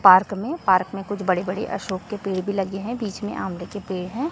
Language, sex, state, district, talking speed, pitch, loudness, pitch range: Hindi, female, Chhattisgarh, Raipur, 265 wpm, 195 Hz, -24 LUFS, 185-205 Hz